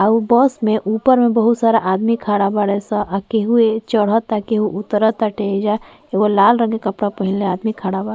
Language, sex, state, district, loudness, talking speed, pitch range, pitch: Bhojpuri, female, Uttar Pradesh, Ghazipur, -17 LUFS, 215 wpm, 205-225 Hz, 215 Hz